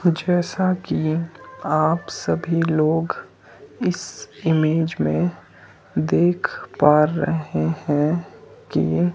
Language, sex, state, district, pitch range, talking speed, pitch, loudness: Hindi, male, Himachal Pradesh, Shimla, 150-170 Hz, 85 wpm, 160 Hz, -21 LUFS